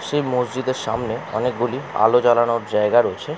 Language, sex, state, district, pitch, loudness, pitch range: Bengali, male, West Bengal, Jalpaiguri, 120 Hz, -20 LUFS, 115-130 Hz